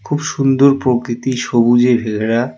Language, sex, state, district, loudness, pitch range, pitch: Bengali, male, West Bengal, Alipurduar, -14 LUFS, 120-135 Hz, 125 Hz